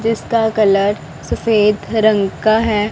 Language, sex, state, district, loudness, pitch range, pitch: Hindi, female, Punjab, Pathankot, -15 LUFS, 210-220 Hz, 215 Hz